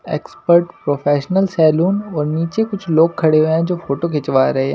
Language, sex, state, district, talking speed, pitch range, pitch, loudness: Hindi, male, Delhi, New Delhi, 190 wpm, 150-175 Hz, 160 Hz, -16 LUFS